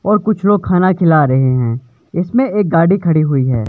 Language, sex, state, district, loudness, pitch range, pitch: Hindi, male, Himachal Pradesh, Shimla, -13 LUFS, 130-200 Hz, 170 Hz